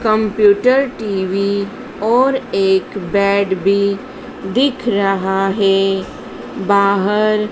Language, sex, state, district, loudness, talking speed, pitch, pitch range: Hindi, female, Madhya Pradesh, Dhar, -15 LUFS, 80 wpm, 200 Hz, 195-215 Hz